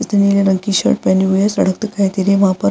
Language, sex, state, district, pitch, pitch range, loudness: Hindi, female, Bihar, Vaishali, 195 Hz, 190-200 Hz, -14 LUFS